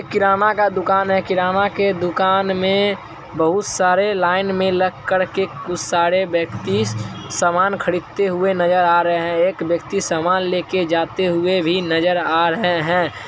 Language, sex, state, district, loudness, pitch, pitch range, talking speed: Hindi, male, Bihar, Araria, -18 LUFS, 180 Hz, 170-190 Hz, 160 wpm